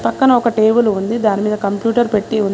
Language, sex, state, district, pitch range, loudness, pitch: Telugu, female, Telangana, Mahabubabad, 205-235 Hz, -15 LUFS, 220 Hz